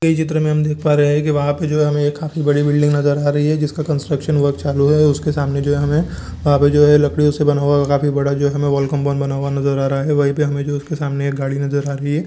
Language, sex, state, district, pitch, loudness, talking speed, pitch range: Hindi, male, Jharkhand, Jamtara, 145 Hz, -17 LUFS, 280 wpm, 140-150 Hz